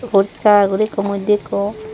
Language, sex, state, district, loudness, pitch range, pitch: Chakma, female, Tripura, Dhalai, -16 LUFS, 200-215 Hz, 205 Hz